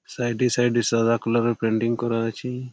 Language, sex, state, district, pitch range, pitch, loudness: Bengali, male, West Bengal, Malda, 115-120 Hz, 120 Hz, -23 LUFS